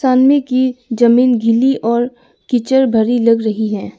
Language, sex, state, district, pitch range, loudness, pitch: Hindi, female, Arunachal Pradesh, Lower Dibang Valley, 230-255 Hz, -14 LUFS, 245 Hz